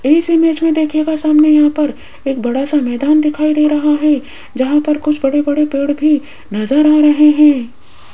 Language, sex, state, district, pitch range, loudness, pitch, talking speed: Hindi, female, Rajasthan, Jaipur, 285-305 Hz, -13 LUFS, 300 Hz, 190 wpm